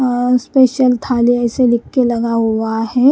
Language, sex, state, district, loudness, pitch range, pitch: Hindi, female, Haryana, Rohtak, -14 LUFS, 235-255 Hz, 245 Hz